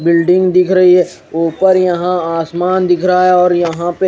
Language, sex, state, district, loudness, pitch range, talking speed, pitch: Hindi, male, Odisha, Khordha, -12 LUFS, 170-185 Hz, 190 wpm, 180 Hz